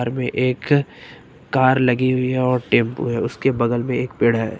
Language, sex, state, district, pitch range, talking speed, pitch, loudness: Hindi, male, Uttar Pradesh, Lucknow, 120-130 Hz, 180 wpm, 125 Hz, -19 LUFS